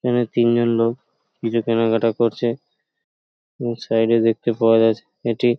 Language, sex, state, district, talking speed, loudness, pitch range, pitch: Bengali, male, West Bengal, Paschim Medinipur, 140 wpm, -19 LUFS, 115-120 Hz, 115 Hz